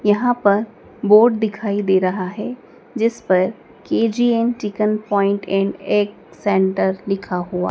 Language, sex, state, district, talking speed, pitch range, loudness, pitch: Hindi, female, Madhya Pradesh, Dhar, 130 wpm, 195-230 Hz, -19 LUFS, 205 Hz